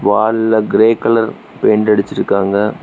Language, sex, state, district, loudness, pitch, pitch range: Tamil, male, Tamil Nadu, Kanyakumari, -13 LUFS, 110 Hz, 100-110 Hz